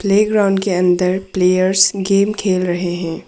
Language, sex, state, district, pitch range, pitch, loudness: Hindi, female, Arunachal Pradesh, Papum Pare, 180-195 Hz, 190 Hz, -15 LUFS